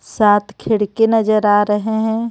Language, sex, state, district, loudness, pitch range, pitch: Hindi, female, Jharkhand, Ranchi, -15 LUFS, 210-220 Hz, 215 Hz